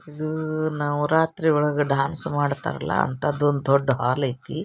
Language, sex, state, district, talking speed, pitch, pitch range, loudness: Kannada, male, Karnataka, Bijapur, 115 wpm, 145 Hz, 140-155 Hz, -23 LUFS